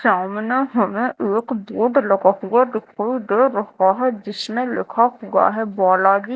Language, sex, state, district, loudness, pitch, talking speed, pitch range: Hindi, female, Madhya Pradesh, Dhar, -19 LUFS, 220 Hz, 140 wpm, 200-250 Hz